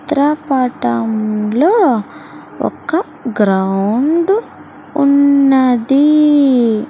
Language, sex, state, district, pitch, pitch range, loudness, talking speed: Telugu, female, Andhra Pradesh, Sri Satya Sai, 275 Hz, 225-300 Hz, -13 LUFS, 50 wpm